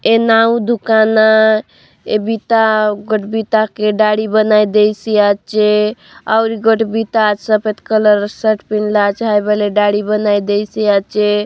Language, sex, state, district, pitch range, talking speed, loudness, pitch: Halbi, female, Chhattisgarh, Bastar, 210-220 Hz, 140 wpm, -13 LUFS, 215 Hz